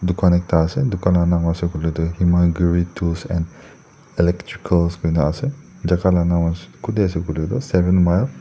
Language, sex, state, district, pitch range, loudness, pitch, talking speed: Nagamese, male, Nagaland, Dimapur, 85-90 Hz, -19 LUFS, 85 Hz, 170 wpm